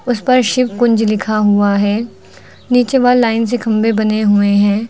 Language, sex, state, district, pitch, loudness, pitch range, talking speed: Hindi, female, Uttar Pradesh, Lucknow, 225 Hz, -13 LUFS, 210-245 Hz, 170 wpm